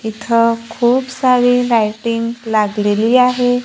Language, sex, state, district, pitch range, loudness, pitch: Marathi, female, Maharashtra, Gondia, 220-245 Hz, -14 LUFS, 230 Hz